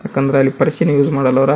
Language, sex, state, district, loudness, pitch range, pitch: Kannada, male, Karnataka, Bijapur, -15 LUFS, 135-140 Hz, 135 Hz